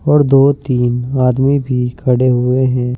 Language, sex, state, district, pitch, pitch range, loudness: Hindi, male, Uttar Pradesh, Saharanpur, 130 Hz, 125-135 Hz, -13 LUFS